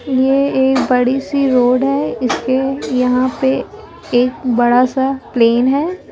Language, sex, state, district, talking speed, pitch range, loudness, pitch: Hindi, female, Uttar Pradesh, Lucknow, 135 wpm, 250-270 Hz, -15 LUFS, 260 Hz